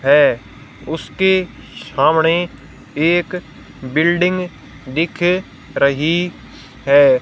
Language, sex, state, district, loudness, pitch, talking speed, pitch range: Hindi, female, Haryana, Rohtak, -16 LUFS, 165 Hz, 65 wpm, 150-180 Hz